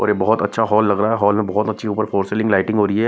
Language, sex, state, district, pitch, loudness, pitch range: Hindi, male, Maharashtra, Mumbai Suburban, 105 Hz, -18 LUFS, 100-110 Hz